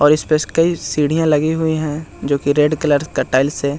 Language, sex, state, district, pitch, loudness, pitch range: Hindi, male, Bihar, Jahanabad, 150 Hz, -17 LUFS, 145-155 Hz